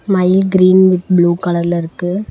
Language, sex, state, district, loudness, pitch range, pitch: Tamil, female, Tamil Nadu, Namakkal, -13 LUFS, 175-190 Hz, 180 Hz